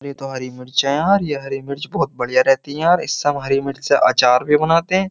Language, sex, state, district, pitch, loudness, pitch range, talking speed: Hindi, male, Uttar Pradesh, Jyotiba Phule Nagar, 140 Hz, -17 LUFS, 135-155 Hz, 235 wpm